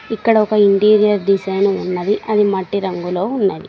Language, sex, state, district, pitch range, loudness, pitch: Telugu, female, Telangana, Mahabubabad, 190-215 Hz, -15 LUFS, 200 Hz